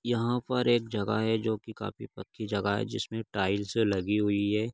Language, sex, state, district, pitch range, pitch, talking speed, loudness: Hindi, male, Bihar, Darbhanga, 100-120 Hz, 110 Hz, 205 wpm, -30 LUFS